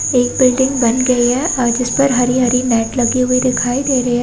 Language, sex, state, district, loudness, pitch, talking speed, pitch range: Hindi, female, Chhattisgarh, Raigarh, -14 LUFS, 250 Hz, 200 wpm, 245-255 Hz